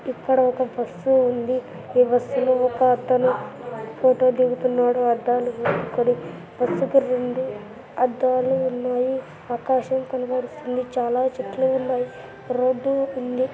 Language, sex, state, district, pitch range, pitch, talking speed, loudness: Telugu, female, Andhra Pradesh, Anantapur, 245-255 Hz, 255 Hz, 100 wpm, -22 LUFS